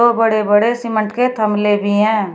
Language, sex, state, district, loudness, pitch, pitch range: Hindi, female, Uttar Pradesh, Shamli, -15 LUFS, 215 Hz, 210-230 Hz